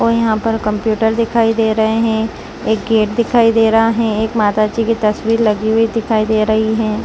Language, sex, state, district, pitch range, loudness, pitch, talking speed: Hindi, female, Chhattisgarh, Rajnandgaon, 220-225 Hz, -15 LUFS, 220 Hz, 215 wpm